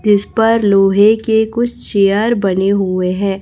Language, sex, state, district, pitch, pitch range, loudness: Hindi, female, Chhattisgarh, Raipur, 205 Hz, 195-225 Hz, -13 LUFS